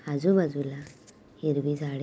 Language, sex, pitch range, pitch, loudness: Marathi, female, 140-150 Hz, 145 Hz, -28 LUFS